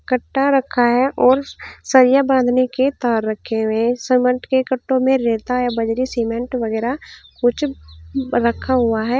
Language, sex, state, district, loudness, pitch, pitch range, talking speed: Hindi, female, Uttar Pradesh, Saharanpur, -18 LUFS, 250 Hz, 230-260 Hz, 155 wpm